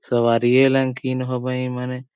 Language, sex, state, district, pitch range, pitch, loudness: Sadri, male, Chhattisgarh, Jashpur, 125-130 Hz, 125 Hz, -20 LUFS